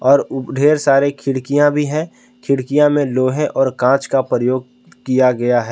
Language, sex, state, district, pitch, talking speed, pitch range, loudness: Hindi, male, Jharkhand, Palamu, 135 Hz, 180 wpm, 130-145 Hz, -16 LUFS